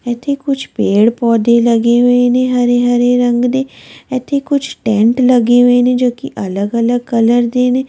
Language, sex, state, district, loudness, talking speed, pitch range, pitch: Punjabi, female, Delhi, New Delhi, -12 LUFS, 165 wpm, 235-255 Hz, 245 Hz